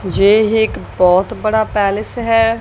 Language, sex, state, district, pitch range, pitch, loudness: Hindi, female, Punjab, Kapurthala, 200-225 Hz, 215 Hz, -14 LUFS